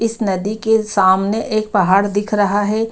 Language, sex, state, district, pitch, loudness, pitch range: Hindi, female, Bihar, Kishanganj, 210 Hz, -16 LUFS, 200-220 Hz